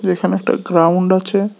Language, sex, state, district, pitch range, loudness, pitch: Bengali, male, Tripura, West Tripura, 180-200 Hz, -15 LUFS, 185 Hz